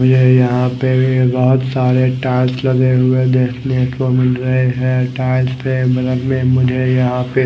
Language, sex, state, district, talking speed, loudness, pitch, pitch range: Hindi, male, Odisha, Khordha, 145 wpm, -14 LUFS, 130 Hz, 125-130 Hz